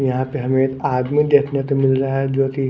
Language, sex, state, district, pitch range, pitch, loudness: Hindi, male, Maharashtra, Gondia, 130-140 Hz, 135 Hz, -18 LUFS